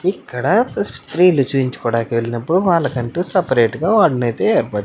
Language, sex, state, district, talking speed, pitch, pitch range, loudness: Telugu, male, Andhra Pradesh, Anantapur, 125 wpm, 135 Hz, 120-180 Hz, -17 LUFS